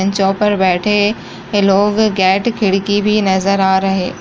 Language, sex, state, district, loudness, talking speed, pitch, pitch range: Kumaoni, female, Uttarakhand, Uttarkashi, -14 LUFS, 155 wpm, 195 Hz, 190-210 Hz